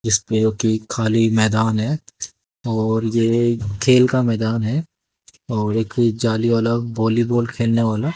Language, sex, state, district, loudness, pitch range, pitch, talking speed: Hindi, male, Haryana, Jhajjar, -19 LUFS, 110-120 Hz, 115 Hz, 140 wpm